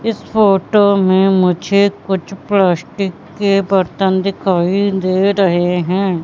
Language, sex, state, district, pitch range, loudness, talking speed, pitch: Hindi, female, Madhya Pradesh, Katni, 185-200 Hz, -14 LUFS, 115 wpm, 195 Hz